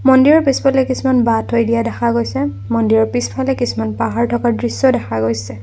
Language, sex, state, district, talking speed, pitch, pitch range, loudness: Assamese, female, Assam, Kamrup Metropolitan, 170 wpm, 235 Hz, 220-260 Hz, -15 LUFS